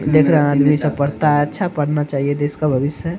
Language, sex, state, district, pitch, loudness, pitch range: Hindi, male, Bihar, Araria, 145 Hz, -17 LUFS, 145-150 Hz